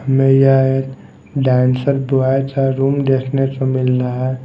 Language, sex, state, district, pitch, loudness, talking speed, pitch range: Hindi, male, Maharashtra, Mumbai Suburban, 135 Hz, -15 LUFS, 160 wpm, 130-135 Hz